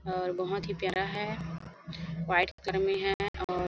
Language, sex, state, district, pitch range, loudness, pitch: Hindi, female, Chhattisgarh, Bilaspur, 175-195 Hz, -32 LUFS, 185 Hz